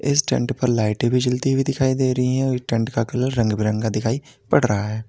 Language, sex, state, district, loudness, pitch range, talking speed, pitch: Hindi, male, Uttar Pradesh, Lalitpur, -21 LUFS, 110-130 Hz, 250 wpm, 125 Hz